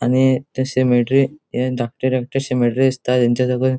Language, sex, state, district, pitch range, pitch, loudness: Konkani, male, Goa, North and South Goa, 125-130 Hz, 130 Hz, -18 LUFS